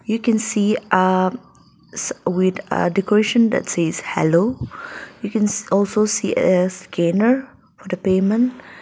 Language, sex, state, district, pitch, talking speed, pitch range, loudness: English, female, Nagaland, Dimapur, 205 Hz, 135 wpm, 185-220 Hz, -19 LUFS